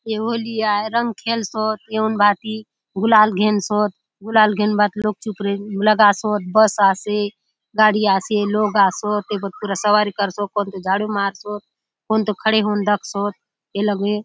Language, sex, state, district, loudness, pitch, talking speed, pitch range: Halbi, female, Chhattisgarh, Bastar, -18 LUFS, 210 Hz, 165 wpm, 205-215 Hz